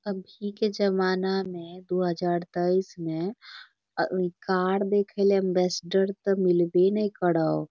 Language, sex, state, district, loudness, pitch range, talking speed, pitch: Magahi, female, Bihar, Lakhisarai, -26 LUFS, 175-200 Hz, 130 wpm, 185 Hz